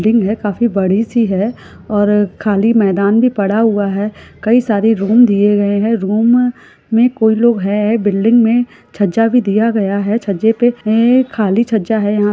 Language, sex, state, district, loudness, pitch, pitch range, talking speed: Hindi, female, Rajasthan, Churu, -13 LUFS, 220 Hz, 205-230 Hz, 185 wpm